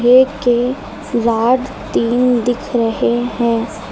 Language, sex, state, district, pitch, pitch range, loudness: Hindi, female, Uttar Pradesh, Lucknow, 240 Hz, 235-250 Hz, -16 LUFS